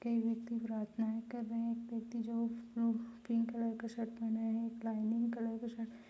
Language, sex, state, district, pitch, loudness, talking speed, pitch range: Hindi, female, Chhattisgarh, Raigarh, 230 Hz, -39 LUFS, 205 wpm, 225-230 Hz